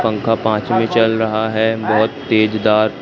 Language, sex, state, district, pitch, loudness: Hindi, male, Madhya Pradesh, Katni, 110 Hz, -16 LUFS